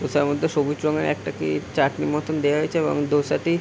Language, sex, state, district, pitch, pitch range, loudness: Bengali, male, West Bengal, Paschim Medinipur, 150 Hz, 145-155 Hz, -23 LUFS